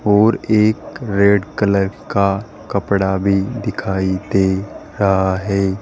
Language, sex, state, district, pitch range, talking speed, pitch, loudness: Hindi, male, Rajasthan, Jaipur, 95-105 Hz, 115 wpm, 100 Hz, -17 LUFS